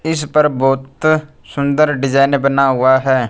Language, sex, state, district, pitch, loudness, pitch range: Hindi, male, Punjab, Fazilka, 140 Hz, -14 LUFS, 135-150 Hz